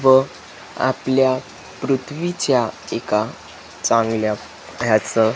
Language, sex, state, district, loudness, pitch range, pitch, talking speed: Marathi, male, Maharashtra, Gondia, -20 LUFS, 110-130 Hz, 125 Hz, 80 wpm